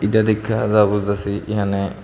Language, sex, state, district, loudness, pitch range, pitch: Bengali, male, Tripura, West Tripura, -19 LUFS, 100-110 Hz, 105 Hz